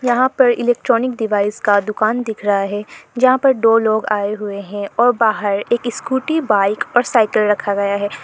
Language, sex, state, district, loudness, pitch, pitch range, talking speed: Hindi, female, Arunachal Pradesh, Lower Dibang Valley, -16 LUFS, 220 Hz, 205-245 Hz, 190 wpm